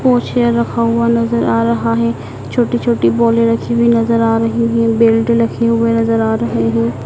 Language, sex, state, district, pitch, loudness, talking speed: Hindi, male, Madhya Pradesh, Dhar, 225 Hz, -14 LUFS, 195 wpm